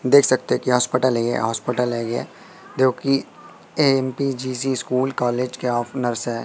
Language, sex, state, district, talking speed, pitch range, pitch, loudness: Hindi, male, Madhya Pradesh, Katni, 165 wpm, 120-130 Hz, 125 Hz, -21 LUFS